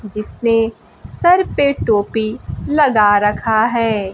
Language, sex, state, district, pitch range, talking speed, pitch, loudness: Hindi, female, Bihar, Kaimur, 210-235 Hz, 100 wpm, 220 Hz, -15 LUFS